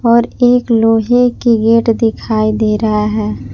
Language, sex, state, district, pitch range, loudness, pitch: Hindi, female, Jharkhand, Palamu, 215-235 Hz, -12 LUFS, 225 Hz